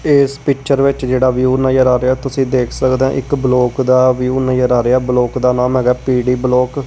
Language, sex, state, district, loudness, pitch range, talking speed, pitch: Punjabi, female, Punjab, Kapurthala, -14 LUFS, 125-135 Hz, 225 wpm, 130 Hz